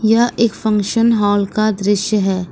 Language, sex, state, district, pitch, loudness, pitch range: Hindi, female, Uttar Pradesh, Lucknow, 210 Hz, -15 LUFS, 205-225 Hz